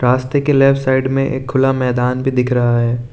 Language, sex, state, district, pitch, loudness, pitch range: Hindi, male, Arunachal Pradesh, Lower Dibang Valley, 130 Hz, -15 LUFS, 125-135 Hz